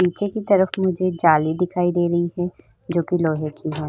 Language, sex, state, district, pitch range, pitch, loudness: Hindi, female, Uttar Pradesh, Budaun, 160-185 Hz, 175 Hz, -21 LUFS